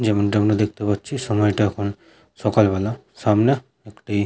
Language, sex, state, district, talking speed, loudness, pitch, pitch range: Bengali, male, West Bengal, Paschim Medinipur, 155 wpm, -21 LUFS, 105 Hz, 105-110 Hz